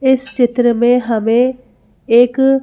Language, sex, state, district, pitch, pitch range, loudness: Hindi, female, Madhya Pradesh, Bhopal, 245 Hz, 240-265 Hz, -13 LUFS